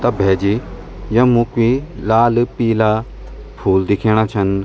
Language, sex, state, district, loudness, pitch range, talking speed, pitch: Garhwali, male, Uttarakhand, Tehri Garhwal, -16 LUFS, 100-120 Hz, 115 wpm, 110 Hz